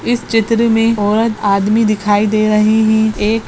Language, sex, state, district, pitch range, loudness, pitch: Hindi, female, Maharashtra, Sindhudurg, 210-225 Hz, -13 LUFS, 220 Hz